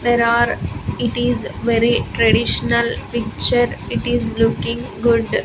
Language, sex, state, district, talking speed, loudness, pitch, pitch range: English, female, Andhra Pradesh, Sri Satya Sai, 120 wpm, -17 LUFS, 235 Hz, 235-240 Hz